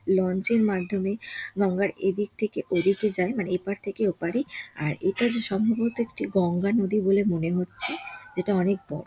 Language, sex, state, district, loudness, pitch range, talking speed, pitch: Bengali, female, West Bengal, Dakshin Dinajpur, -26 LUFS, 180-210 Hz, 180 wpm, 195 Hz